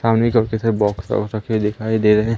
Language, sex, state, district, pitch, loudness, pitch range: Hindi, male, Madhya Pradesh, Umaria, 110 Hz, -18 LUFS, 105-115 Hz